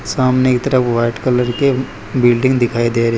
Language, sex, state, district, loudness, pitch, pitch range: Hindi, male, Gujarat, Valsad, -15 LUFS, 125 Hz, 120-130 Hz